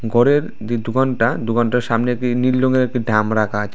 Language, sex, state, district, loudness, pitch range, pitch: Bengali, male, Tripura, West Tripura, -18 LUFS, 115-125 Hz, 120 Hz